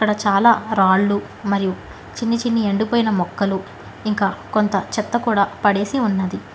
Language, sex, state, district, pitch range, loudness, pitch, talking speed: Telugu, female, Telangana, Hyderabad, 195-220 Hz, -19 LUFS, 205 Hz, 110 wpm